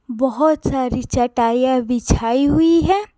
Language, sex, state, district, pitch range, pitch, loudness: Hindi, female, Bihar, Patna, 245-310 Hz, 260 Hz, -17 LUFS